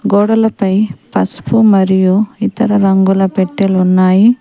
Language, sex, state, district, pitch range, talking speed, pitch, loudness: Telugu, female, Telangana, Mahabubabad, 190-220 Hz, 95 wpm, 195 Hz, -12 LUFS